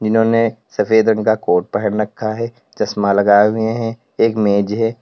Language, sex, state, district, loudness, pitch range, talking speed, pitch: Hindi, male, Uttar Pradesh, Lalitpur, -16 LUFS, 105-115 Hz, 180 wpm, 110 Hz